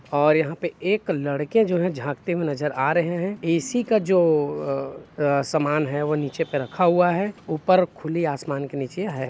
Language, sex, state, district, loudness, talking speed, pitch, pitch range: Hindi, male, Chhattisgarh, Bilaspur, -23 LUFS, 195 wpm, 155 Hz, 145-180 Hz